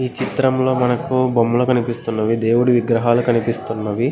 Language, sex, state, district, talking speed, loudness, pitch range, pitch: Telugu, male, Andhra Pradesh, Guntur, 115 wpm, -18 LUFS, 115-130 Hz, 120 Hz